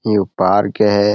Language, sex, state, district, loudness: Hindi, male, Uttar Pradesh, Etah, -15 LUFS